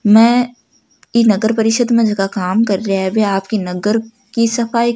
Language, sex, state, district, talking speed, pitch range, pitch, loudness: Marwari, female, Rajasthan, Nagaur, 195 wpm, 200-235 Hz, 220 Hz, -15 LUFS